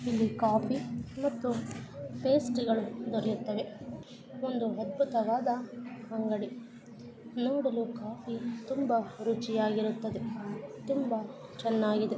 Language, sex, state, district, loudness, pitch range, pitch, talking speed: Kannada, female, Karnataka, Dharwad, -33 LUFS, 220-245 Hz, 230 Hz, 70 wpm